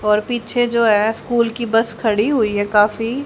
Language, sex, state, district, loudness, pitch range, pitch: Hindi, female, Haryana, Rohtak, -17 LUFS, 210-235 Hz, 225 Hz